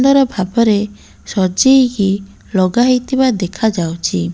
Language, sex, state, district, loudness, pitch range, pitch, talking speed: Odia, female, Odisha, Malkangiri, -14 LUFS, 185-250 Hz, 210 Hz, 95 wpm